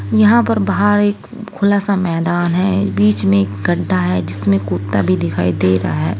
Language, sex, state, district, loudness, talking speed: Hindi, female, Uttar Pradesh, Saharanpur, -15 LUFS, 195 wpm